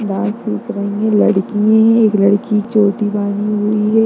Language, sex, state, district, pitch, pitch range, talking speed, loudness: Hindi, female, Bihar, Darbhanga, 210 Hz, 205-215 Hz, 165 wpm, -14 LUFS